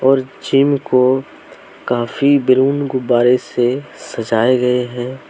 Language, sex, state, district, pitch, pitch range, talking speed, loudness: Hindi, male, Jharkhand, Deoghar, 130 Hz, 125-135 Hz, 100 wpm, -15 LUFS